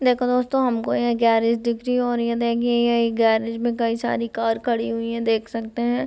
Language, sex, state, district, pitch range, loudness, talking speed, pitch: Hindi, female, Bihar, Sitamarhi, 230-240 Hz, -22 LUFS, 235 wpm, 235 Hz